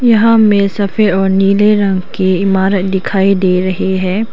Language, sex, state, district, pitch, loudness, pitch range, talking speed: Hindi, female, Arunachal Pradesh, Lower Dibang Valley, 195 Hz, -12 LUFS, 190-205 Hz, 165 wpm